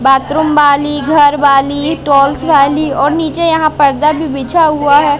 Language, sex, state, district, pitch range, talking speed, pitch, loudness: Hindi, female, Madhya Pradesh, Katni, 280-310 Hz, 150 wpm, 290 Hz, -10 LUFS